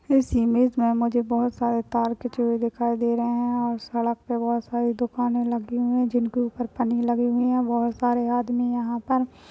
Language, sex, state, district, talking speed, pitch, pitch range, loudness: Hindi, male, Chhattisgarh, Raigarh, 215 wpm, 240 Hz, 235-245 Hz, -24 LUFS